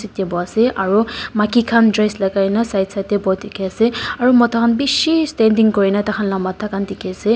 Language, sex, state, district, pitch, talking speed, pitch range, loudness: Nagamese, female, Nagaland, Dimapur, 210 Hz, 210 wpm, 195-230 Hz, -16 LUFS